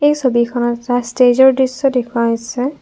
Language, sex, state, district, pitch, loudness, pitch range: Assamese, female, Assam, Kamrup Metropolitan, 250 Hz, -15 LUFS, 240-265 Hz